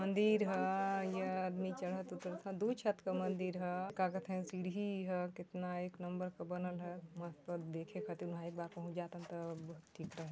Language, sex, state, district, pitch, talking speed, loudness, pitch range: Chhattisgarhi, female, Chhattisgarh, Balrampur, 180 Hz, 200 wpm, -41 LUFS, 175-190 Hz